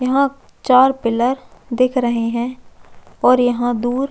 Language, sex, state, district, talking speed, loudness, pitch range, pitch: Hindi, female, Chhattisgarh, Jashpur, 145 wpm, -17 LUFS, 240-260 Hz, 250 Hz